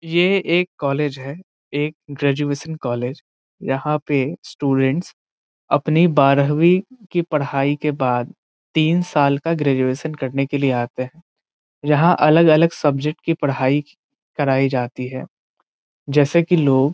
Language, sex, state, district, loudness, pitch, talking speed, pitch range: Hindi, male, Bihar, Saran, -19 LUFS, 145 Hz, 135 wpm, 135-165 Hz